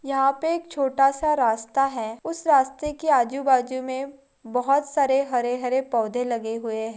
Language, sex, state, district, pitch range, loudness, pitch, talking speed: Hindi, female, Goa, North and South Goa, 245-275 Hz, -23 LUFS, 270 Hz, 180 wpm